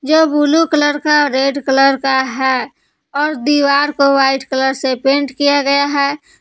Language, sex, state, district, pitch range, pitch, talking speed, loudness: Hindi, female, Jharkhand, Palamu, 270-295 Hz, 280 Hz, 170 wpm, -14 LUFS